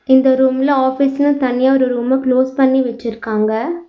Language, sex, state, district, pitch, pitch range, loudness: Tamil, female, Tamil Nadu, Nilgiris, 260 Hz, 250-270 Hz, -15 LUFS